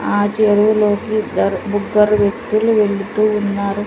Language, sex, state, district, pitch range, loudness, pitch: Telugu, female, Andhra Pradesh, Sri Satya Sai, 205-215 Hz, -16 LUFS, 210 Hz